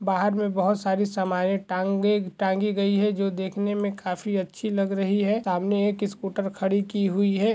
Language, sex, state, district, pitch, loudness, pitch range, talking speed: Hindi, male, Goa, North and South Goa, 200 Hz, -25 LUFS, 190-205 Hz, 190 wpm